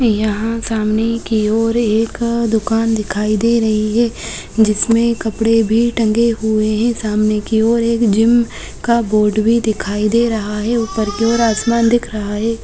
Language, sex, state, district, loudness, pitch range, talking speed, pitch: Hindi, female, Uttar Pradesh, Deoria, -15 LUFS, 215-230 Hz, 165 wpm, 225 Hz